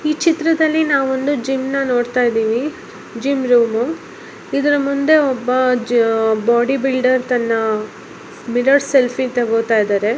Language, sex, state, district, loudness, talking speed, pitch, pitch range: Kannada, female, Karnataka, Bellary, -16 LUFS, 120 wpm, 255 Hz, 235-280 Hz